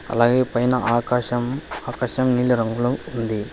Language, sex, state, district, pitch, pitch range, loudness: Telugu, male, Telangana, Hyderabad, 120 Hz, 120-125 Hz, -21 LUFS